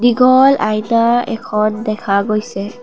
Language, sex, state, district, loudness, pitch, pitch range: Assamese, female, Assam, Kamrup Metropolitan, -14 LUFS, 220 Hz, 215-240 Hz